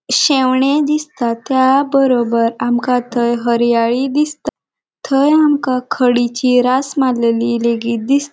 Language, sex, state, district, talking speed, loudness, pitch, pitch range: Konkani, female, Goa, North and South Goa, 115 wpm, -14 LUFS, 255 Hz, 235-280 Hz